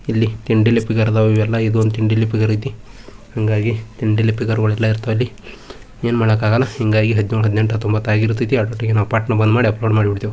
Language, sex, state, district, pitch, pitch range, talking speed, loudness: Kannada, male, Karnataka, Bijapur, 110 Hz, 110-115 Hz, 120 wpm, -17 LUFS